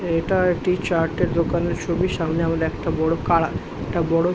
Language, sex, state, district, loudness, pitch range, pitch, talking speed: Bengali, male, West Bengal, Jhargram, -22 LUFS, 165-180 Hz, 170 Hz, 150 wpm